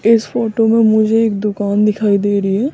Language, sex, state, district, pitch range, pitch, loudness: Hindi, female, Rajasthan, Jaipur, 205-225 Hz, 215 Hz, -14 LUFS